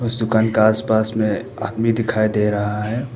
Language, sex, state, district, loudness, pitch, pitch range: Hindi, male, Arunachal Pradesh, Papum Pare, -19 LUFS, 110 Hz, 110-115 Hz